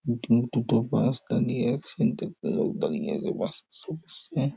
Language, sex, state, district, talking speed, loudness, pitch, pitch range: Bengali, male, West Bengal, Jhargram, 80 wpm, -27 LUFS, 120 Hz, 120-140 Hz